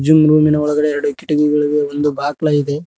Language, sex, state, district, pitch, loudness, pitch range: Kannada, male, Karnataka, Koppal, 150 Hz, -15 LUFS, 145-155 Hz